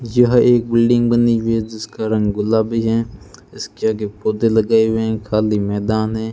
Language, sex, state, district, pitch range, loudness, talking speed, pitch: Hindi, male, Rajasthan, Bikaner, 110-115 Hz, -17 LUFS, 180 wpm, 110 Hz